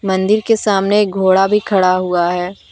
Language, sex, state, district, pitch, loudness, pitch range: Hindi, female, Jharkhand, Deoghar, 195 Hz, -14 LUFS, 185-205 Hz